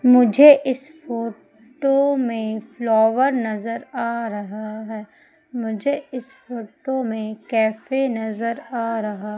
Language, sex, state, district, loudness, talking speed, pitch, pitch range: Hindi, female, Madhya Pradesh, Umaria, -21 LUFS, 115 wpm, 235 Hz, 220-265 Hz